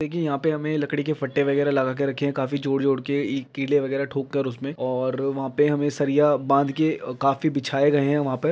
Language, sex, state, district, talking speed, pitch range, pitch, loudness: Hindi, male, Bihar, Lakhisarai, 255 wpm, 135-145 Hz, 140 Hz, -23 LUFS